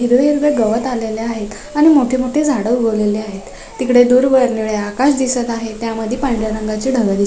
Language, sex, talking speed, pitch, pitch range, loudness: Marathi, female, 190 wpm, 235 Hz, 220-260 Hz, -15 LUFS